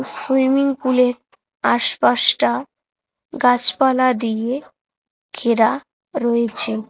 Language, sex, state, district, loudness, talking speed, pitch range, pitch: Bengali, female, West Bengal, Cooch Behar, -18 LUFS, 70 wpm, 235-265 Hz, 250 Hz